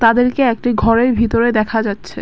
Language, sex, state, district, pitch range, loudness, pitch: Bengali, female, Assam, Kamrup Metropolitan, 225-245 Hz, -15 LUFS, 230 Hz